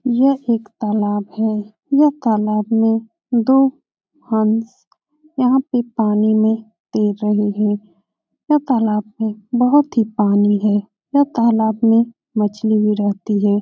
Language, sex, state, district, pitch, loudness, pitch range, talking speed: Hindi, female, Uttar Pradesh, Etah, 220 Hz, -17 LUFS, 210-245 Hz, 130 wpm